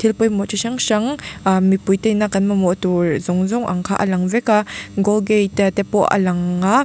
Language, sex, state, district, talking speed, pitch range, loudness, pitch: Mizo, female, Mizoram, Aizawl, 235 wpm, 190-215 Hz, -18 LUFS, 200 Hz